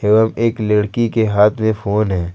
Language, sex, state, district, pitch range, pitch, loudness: Hindi, male, Jharkhand, Ranchi, 105-110 Hz, 105 Hz, -16 LUFS